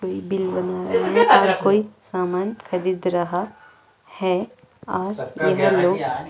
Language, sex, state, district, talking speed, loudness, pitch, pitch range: Hindi, female, Chhattisgarh, Jashpur, 145 wpm, -21 LUFS, 185 Hz, 180-210 Hz